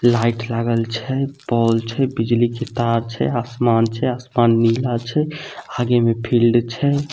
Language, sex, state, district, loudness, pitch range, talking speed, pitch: Maithili, male, Bihar, Samastipur, -19 LUFS, 115-125 Hz, 150 wpm, 120 Hz